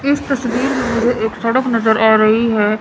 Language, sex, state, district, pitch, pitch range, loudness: Hindi, female, Chandigarh, Chandigarh, 230 Hz, 220-255 Hz, -15 LUFS